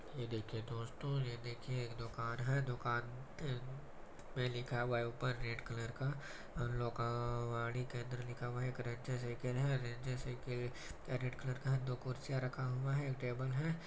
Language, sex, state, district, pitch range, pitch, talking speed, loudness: Hindi, male, Chhattisgarh, Balrampur, 120-130 Hz, 125 Hz, 170 wpm, -42 LUFS